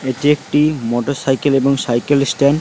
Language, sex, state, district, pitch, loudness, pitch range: Bengali, male, West Bengal, Paschim Medinipur, 140 Hz, -16 LUFS, 130-145 Hz